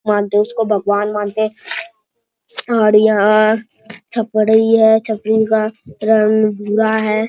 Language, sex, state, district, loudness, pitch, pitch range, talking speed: Hindi, male, Bihar, Bhagalpur, -15 LUFS, 220 Hz, 210-220 Hz, 125 wpm